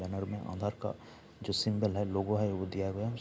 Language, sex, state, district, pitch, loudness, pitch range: Hindi, male, Bihar, Saharsa, 100 Hz, -35 LUFS, 95-105 Hz